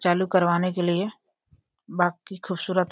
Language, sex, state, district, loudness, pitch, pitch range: Hindi, female, Uttar Pradesh, Deoria, -25 LUFS, 180 Hz, 175-185 Hz